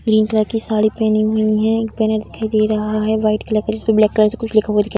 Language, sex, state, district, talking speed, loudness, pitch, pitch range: Hindi, female, Bihar, Darbhanga, 275 wpm, -17 LUFS, 215 Hz, 215-220 Hz